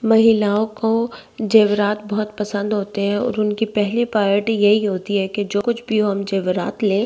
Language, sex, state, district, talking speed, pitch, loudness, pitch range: Hindi, female, Delhi, New Delhi, 185 wpm, 210 Hz, -19 LUFS, 205-220 Hz